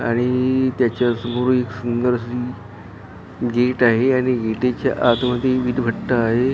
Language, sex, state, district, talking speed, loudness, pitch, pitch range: Marathi, male, Maharashtra, Gondia, 140 wpm, -19 LUFS, 125 Hz, 120-125 Hz